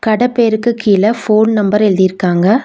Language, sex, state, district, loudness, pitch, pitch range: Tamil, female, Tamil Nadu, Nilgiris, -12 LUFS, 215 Hz, 200-225 Hz